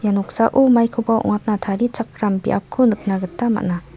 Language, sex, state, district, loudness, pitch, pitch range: Garo, female, Meghalaya, South Garo Hills, -19 LUFS, 220 Hz, 200-235 Hz